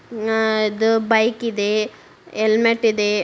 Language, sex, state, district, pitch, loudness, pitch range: Kannada, female, Karnataka, Dharwad, 220 Hz, -19 LUFS, 215-225 Hz